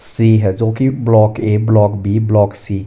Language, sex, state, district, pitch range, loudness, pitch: Hindi, male, Himachal Pradesh, Shimla, 105-110 Hz, -13 LUFS, 110 Hz